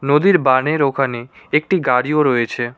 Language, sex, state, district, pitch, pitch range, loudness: Bengali, male, West Bengal, Cooch Behar, 140 Hz, 125-150 Hz, -16 LUFS